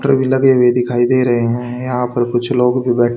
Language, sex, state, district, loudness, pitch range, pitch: Hindi, male, Haryana, Rohtak, -15 LUFS, 120-130 Hz, 125 Hz